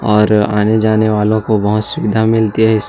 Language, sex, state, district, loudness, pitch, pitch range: Hindi, male, Chhattisgarh, Jashpur, -13 LUFS, 110 Hz, 105-110 Hz